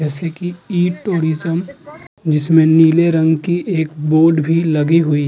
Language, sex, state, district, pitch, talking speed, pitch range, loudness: Hindi, male, Uttar Pradesh, Muzaffarnagar, 165 Hz, 160 wpm, 160-175 Hz, -15 LUFS